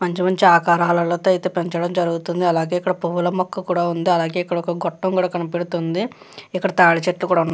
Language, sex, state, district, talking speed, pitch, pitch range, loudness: Telugu, female, Andhra Pradesh, Chittoor, 175 wpm, 175 Hz, 170-185 Hz, -19 LUFS